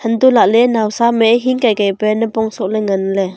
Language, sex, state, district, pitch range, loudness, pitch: Wancho, female, Arunachal Pradesh, Longding, 205-235 Hz, -14 LUFS, 225 Hz